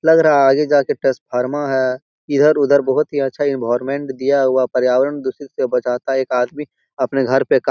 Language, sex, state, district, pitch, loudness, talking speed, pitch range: Hindi, male, Bihar, Jahanabad, 135 Hz, -17 LUFS, 200 wpm, 130-145 Hz